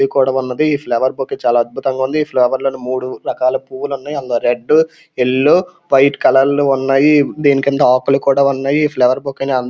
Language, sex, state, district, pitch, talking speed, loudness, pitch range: Telugu, male, Andhra Pradesh, Srikakulam, 135 Hz, 205 wpm, -15 LUFS, 130-140 Hz